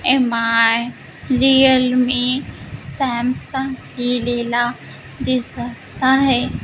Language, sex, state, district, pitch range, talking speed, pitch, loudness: Marathi, female, Maharashtra, Gondia, 240-265 Hz, 65 wpm, 250 Hz, -17 LUFS